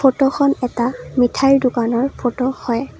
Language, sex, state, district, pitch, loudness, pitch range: Assamese, female, Assam, Kamrup Metropolitan, 255 Hz, -18 LUFS, 245-270 Hz